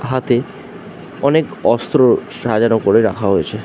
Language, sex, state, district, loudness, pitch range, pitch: Bengali, male, West Bengal, Jhargram, -15 LUFS, 110-130 Hz, 115 Hz